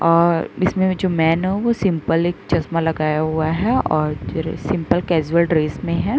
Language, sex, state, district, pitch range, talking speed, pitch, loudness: Hindi, female, Uttar Pradesh, Muzaffarnagar, 155-180 Hz, 175 wpm, 165 Hz, -19 LUFS